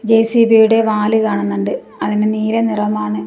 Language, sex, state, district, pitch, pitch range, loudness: Malayalam, female, Kerala, Kasaragod, 215 Hz, 210-225 Hz, -15 LUFS